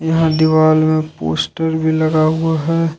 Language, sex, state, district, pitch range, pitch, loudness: Hindi, male, Jharkhand, Ranchi, 155-160 Hz, 160 Hz, -15 LUFS